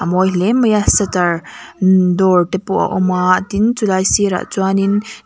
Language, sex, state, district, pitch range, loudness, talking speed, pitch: Mizo, female, Mizoram, Aizawl, 185-200 Hz, -14 LUFS, 180 wpm, 190 Hz